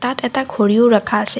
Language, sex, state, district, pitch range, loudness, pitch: Assamese, female, Assam, Kamrup Metropolitan, 210-260 Hz, -15 LUFS, 240 Hz